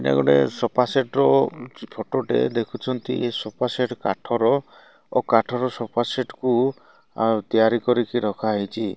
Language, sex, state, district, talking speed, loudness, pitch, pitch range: Odia, male, Odisha, Malkangiri, 135 wpm, -22 LUFS, 120 Hz, 110-125 Hz